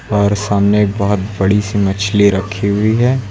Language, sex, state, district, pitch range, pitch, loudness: Hindi, male, Uttar Pradesh, Lucknow, 100-105 Hz, 100 Hz, -14 LUFS